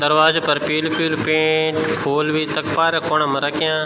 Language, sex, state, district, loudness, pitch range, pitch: Garhwali, male, Uttarakhand, Tehri Garhwal, -18 LUFS, 150-155 Hz, 155 Hz